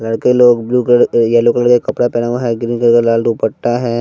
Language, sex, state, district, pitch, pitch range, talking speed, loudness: Hindi, male, Bihar, West Champaran, 120 Hz, 115-120 Hz, 255 wpm, -13 LUFS